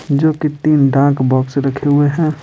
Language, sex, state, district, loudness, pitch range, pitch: Hindi, male, Bihar, Patna, -14 LUFS, 135-150 Hz, 145 Hz